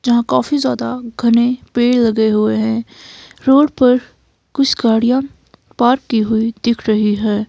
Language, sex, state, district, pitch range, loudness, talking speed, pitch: Hindi, female, Himachal Pradesh, Shimla, 220-245 Hz, -15 LUFS, 145 wpm, 230 Hz